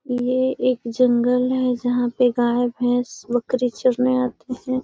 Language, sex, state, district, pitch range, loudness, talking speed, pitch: Hindi, female, Bihar, Gaya, 245-255 Hz, -20 LUFS, 150 wpm, 250 Hz